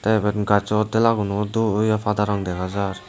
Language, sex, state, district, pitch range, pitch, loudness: Chakma, male, Tripura, Unakoti, 100-110 Hz, 105 Hz, -21 LUFS